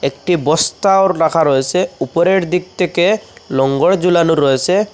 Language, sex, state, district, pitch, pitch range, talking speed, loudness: Bengali, male, Assam, Hailakandi, 175 Hz, 155-185 Hz, 135 wpm, -14 LUFS